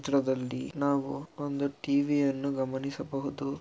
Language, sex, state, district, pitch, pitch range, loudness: Kannada, male, Karnataka, Shimoga, 140 Hz, 135-140 Hz, -31 LUFS